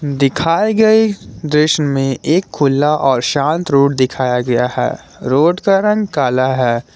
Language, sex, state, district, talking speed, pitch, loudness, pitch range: Hindi, male, Jharkhand, Garhwa, 145 wpm, 140 Hz, -14 LUFS, 130-170 Hz